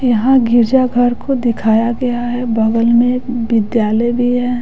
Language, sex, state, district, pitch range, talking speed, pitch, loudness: Hindi, female, Bihar, West Champaran, 230-245 Hz, 145 wpm, 240 Hz, -14 LUFS